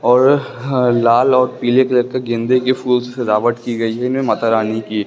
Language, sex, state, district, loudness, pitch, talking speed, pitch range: Hindi, male, Bihar, West Champaran, -15 LUFS, 125 Hz, 225 wpm, 115-130 Hz